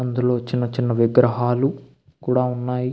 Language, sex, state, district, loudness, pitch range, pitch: Telugu, male, Andhra Pradesh, Krishna, -20 LUFS, 120-125 Hz, 125 Hz